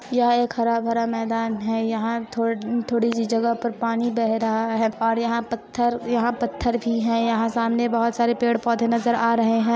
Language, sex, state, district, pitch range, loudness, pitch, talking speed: Hindi, female, Chhattisgarh, Sarguja, 230-235 Hz, -22 LUFS, 230 Hz, 190 wpm